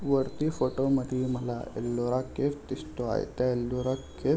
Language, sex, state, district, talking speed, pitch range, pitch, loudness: Marathi, male, Maharashtra, Aurangabad, 150 wpm, 125-135 Hz, 130 Hz, -30 LUFS